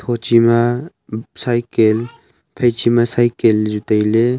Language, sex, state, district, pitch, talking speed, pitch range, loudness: Wancho, male, Arunachal Pradesh, Longding, 115 Hz, 125 wpm, 110-120 Hz, -16 LUFS